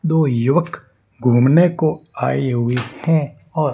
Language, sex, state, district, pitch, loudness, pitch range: Hindi, male, Rajasthan, Barmer, 140 Hz, -17 LUFS, 125-160 Hz